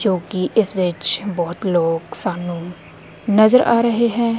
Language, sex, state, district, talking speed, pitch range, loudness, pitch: Punjabi, female, Punjab, Kapurthala, 150 wpm, 175-225 Hz, -18 LUFS, 185 Hz